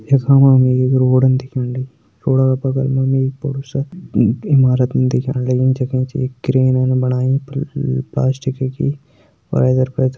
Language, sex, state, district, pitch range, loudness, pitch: Hindi, male, Uttarakhand, Tehri Garhwal, 130-135 Hz, -16 LUFS, 130 Hz